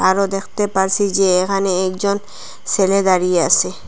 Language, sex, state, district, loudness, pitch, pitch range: Bengali, female, Assam, Hailakandi, -16 LUFS, 195 Hz, 185-200 Hz